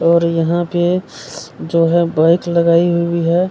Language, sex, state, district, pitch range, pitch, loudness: Hindi, male, Bihar, Kishanganj, 170-175 Hz, 170 Hz, -15 LUFS